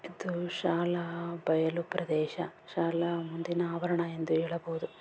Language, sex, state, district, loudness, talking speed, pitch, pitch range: Kannada, female, Karnataka, Bijapur, -32 LUFS, 110 wpm, 170 Hz, 165-175 Hz